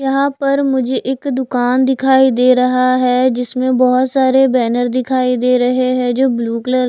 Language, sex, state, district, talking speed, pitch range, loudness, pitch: Hindi, female, Chhattisgarh, Raipur, 185 wpm, 250-265 Hz, -14 LUFS, 255 Hz